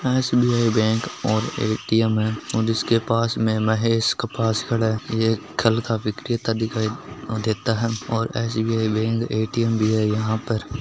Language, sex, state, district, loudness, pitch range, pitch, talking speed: Hindi, male, Rajasthan, Nagaur, -22 LUFS, 110-115 Hz, 115 Hz, 145 wpm